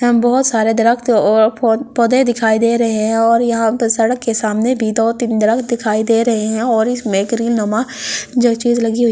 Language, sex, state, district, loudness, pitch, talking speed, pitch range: Hindi, female, Delhi, New Delhi, -14 LUFS, 230 Hz, 205 wpm, 220-240 Hz